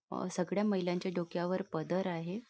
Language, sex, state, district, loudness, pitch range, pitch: Marathi, female, Maharashtra, Nagpur, -35 LUFS, 175-190 Hz, 180 Hz